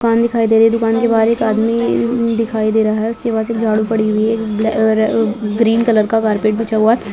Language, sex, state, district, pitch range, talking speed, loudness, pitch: Hindi, female, Bihar, Bhagalpur, 215-230 Hz, 225 wpm, -15 LUFS, 225 Hz